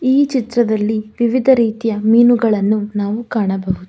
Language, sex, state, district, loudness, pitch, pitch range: Kannada, female, Karnataka, Bangalore, -15 LUFS, 225 Hz, 210-240 Hz